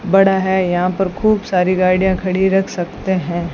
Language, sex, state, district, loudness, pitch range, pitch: Hindi, female, Rajasthan, Bikaner, -16 LUFS, 180-195 Hz, 190 Hz